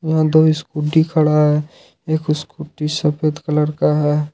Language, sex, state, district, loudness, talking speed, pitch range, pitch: Hindi, male, Jharkhand, Ranchi, -17 LUFS, 150 wpm, 150-155 Hz, 150 Hz